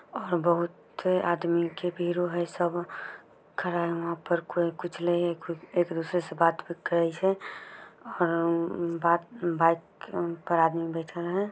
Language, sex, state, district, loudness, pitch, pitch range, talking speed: Chhattisgarhi, female, Chhattisgarh, Bilaspur, -28 LUFS, 170 Hz, 170-175 Hz, 140 wpm